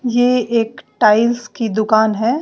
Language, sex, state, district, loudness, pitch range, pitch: Hindi, female, Bihar, West Champaran, -16 LUFS, 220-245 Hz, 230 Hz